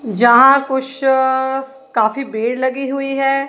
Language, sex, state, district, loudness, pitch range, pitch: Hindi, female, Punjab, Kapurthala, -15 LUFS, 260-270 Hz, 265 Hz